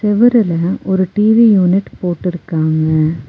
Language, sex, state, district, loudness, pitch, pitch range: Tamil, female, Tamil Nadu, Nilgiris, -13 LUFS, 180 Hz, 165-210 Hz